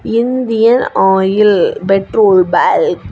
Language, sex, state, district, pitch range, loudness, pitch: Tamil, female, Tamil Nadu, Kanyakumari, 195-255 Hz, -11 LUFS, 225 Hz